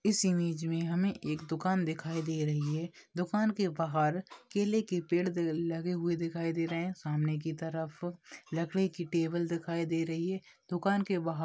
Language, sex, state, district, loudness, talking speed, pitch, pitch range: Hindi, female, Bihar, Jahanabad, -33 LUFS, 190 wpm, 170 Hz, 165-180 Hz